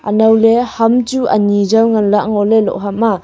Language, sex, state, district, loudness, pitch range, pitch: Wancho, female, Arunachal Pradesh, Longding, -12 LUFS, 210-230 Hz, 220 Hz